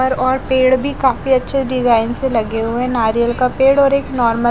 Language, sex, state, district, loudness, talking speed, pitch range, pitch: Hindi, female, Bihar, West Champaran, -15 LUFS, 215 wpm, 235-265 Hz, 255 Hz